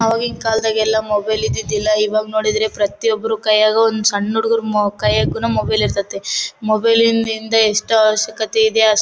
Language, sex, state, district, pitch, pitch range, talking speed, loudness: Kannada, female, Karnataka, Bellary, 220 Hz, 215-225 Hz, 155 wpm, -16 LUFS